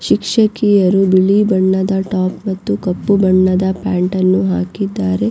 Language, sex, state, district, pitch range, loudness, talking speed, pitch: Kannada, female, Karnataka, Raichur, 185-200 Hz, -14 LUFS, 80 wpm, 190 Hz